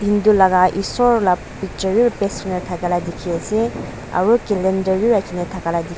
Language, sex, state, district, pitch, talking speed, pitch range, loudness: Nagamese, female, Nagaland, Dimapur, 190 Hz, 200 wpm, 180-205 Hz, -18 LUFS